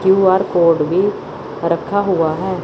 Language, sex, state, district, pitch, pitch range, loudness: Hindi, female, Chandigarh, Chandigarh, 185 Hz, 170-190 Hz, -16 LUFS